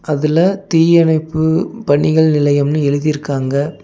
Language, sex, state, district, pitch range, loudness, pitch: Tamil, male, Tamil Nadu, Nilgiris, 145-160 Hz, -14 LUFS, 155 Hz